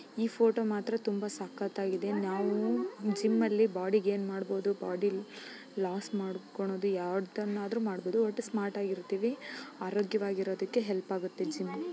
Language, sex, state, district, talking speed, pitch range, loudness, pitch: Kannada, female, Karnataka, Chamarajanagar, 130 wpm, 195-220 Hz, -33 LUFS, 205 Hz